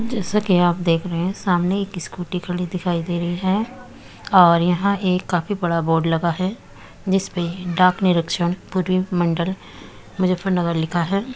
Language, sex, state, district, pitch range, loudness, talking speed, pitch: Hindi, female, Uttar Pradesh, Muzaffarnagar, 170-190 Hz, -20 LUFS, 170 wpm, 180 Hz